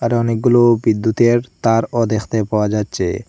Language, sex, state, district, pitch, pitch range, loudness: Bengali, male, Assam, Hailakandi, 115 Hz, 110-120 Hz, -16 LUFS